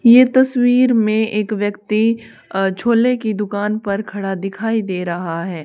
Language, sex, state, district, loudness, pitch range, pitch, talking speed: Hindi, female, Haryana, Charkhi Dadri, -17 LUFS, 195-230 Hz, 215 Hz, 160 wpm